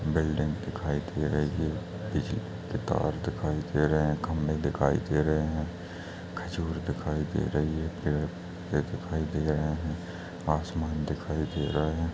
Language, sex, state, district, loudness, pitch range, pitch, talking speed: Hindi, male, Uttar Pradesh, Deoria, -31 LUFS, 75-85 Hz, 80 Hz, 165 wpm